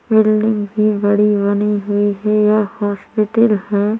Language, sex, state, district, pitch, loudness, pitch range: Hindi, female, Chhattisgarh, Korba, 210 Hz, -15 LUFS, 205-215 Hz